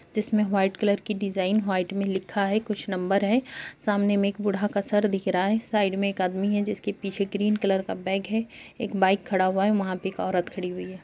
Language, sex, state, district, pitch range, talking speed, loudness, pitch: Hindi, female, Uttar Pradesh, Jalaun, 190-210 Hz, 245 wpm, -26 LUFS, 200 Hz